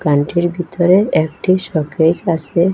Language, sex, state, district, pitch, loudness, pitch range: Bengali, female, Assam, Hailakandi, 170 Hz, -15 LUFS, 155-180 Hz